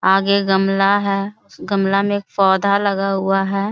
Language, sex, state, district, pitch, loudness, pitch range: Hindi, female, Bihar, Jamui, 195 Hz, -17 LUFS, 195-200 Hz